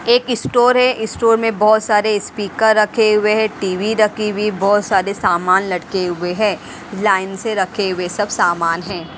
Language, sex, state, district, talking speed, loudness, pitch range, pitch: Hindi, female, Haryana, Rohtak, 175 wpm, -16 LUFS, 190-220 Hz, 210 Hz